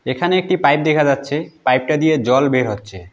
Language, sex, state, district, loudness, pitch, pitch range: Bengali, female, West Bengal, Alipurduar, -16 LUFS, 140 Hz, 130-155 Hz